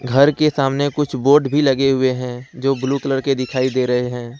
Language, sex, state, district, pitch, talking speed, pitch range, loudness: Hindi, male, Jharkhand, Ranchi, 135 Hz, 230 wpm, 130-140 Hz, -18 LUFS